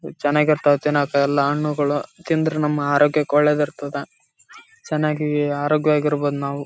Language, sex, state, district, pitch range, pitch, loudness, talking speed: Kannada, male, Karnataka, Raichur, 145-150 Hz, 150 Hz, -20 LUFS, 100 wpm